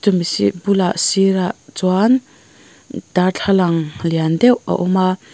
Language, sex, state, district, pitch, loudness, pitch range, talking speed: Mizo, female, Mizoram, Aizawl, 185 Hz, -16 LUFS, 170-195 Hz, 100 wpm